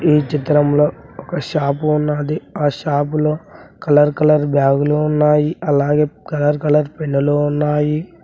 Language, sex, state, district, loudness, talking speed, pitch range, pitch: Telugu, male, Telangana, Mahabubabad, -16 LUFS, 115 wpm, 145-150 Hz, 150 Hz